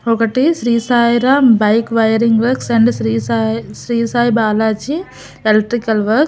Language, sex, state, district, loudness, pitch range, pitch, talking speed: Telugu, female, Telangana, Hyderabad, -14 LUFS, 220-240 Hz, 230 Hz, 135 wpm